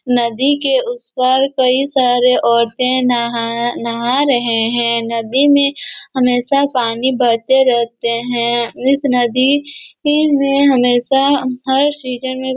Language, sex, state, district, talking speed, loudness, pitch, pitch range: Hindi, female, Chhattisgarh, Korba, 120 wpm, -14 LUFS, 255 Hz, 240-275 Hz